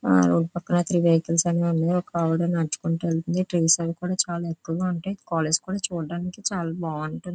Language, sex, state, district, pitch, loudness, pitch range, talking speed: Telugu, female, Andhra Pradesh, Visakhapatnam, 170 Hz, -24 LUFS, 165-175 Hz, 165 wpm